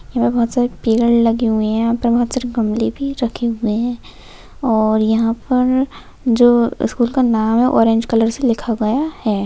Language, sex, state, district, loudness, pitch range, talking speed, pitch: Hindi, female, Maharashtra, Sindhudurg, -16 LUFS, 225-245 Hz, 195 wpm, 235 Hz